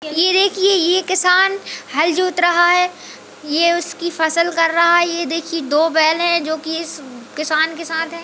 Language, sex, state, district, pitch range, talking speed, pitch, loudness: Hindi, female, Bihar, Jamui, 320-350 Hz, 190 wpm, 335 Hz, -16 LUFS